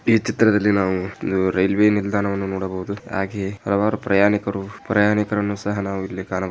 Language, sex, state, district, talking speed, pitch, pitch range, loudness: Kannada, male, Karnataka, Chamarajanagar, 140 wpm, 100 Hz, 95-105 Hz, -21 LUFS